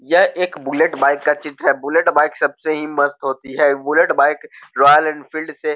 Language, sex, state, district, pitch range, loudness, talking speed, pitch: Hindi, male, Bihar, Gopalganj, 140-155 Hz, -16 LUFS, 210 wpm, 150 Hz